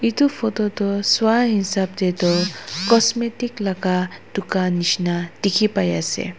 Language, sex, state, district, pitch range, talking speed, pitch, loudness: Nagamese, female, Nagaland, Dimapur, 180-225 Hz, 130 wpm, 200 Hz, -20 LUFS